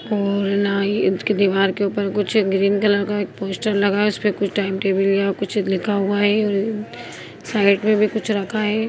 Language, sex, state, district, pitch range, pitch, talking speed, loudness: Hindi, female, Chhattisgarh, Bastar, 195-210 Hz, 200 Hz, 215 wpm, -19 LUFS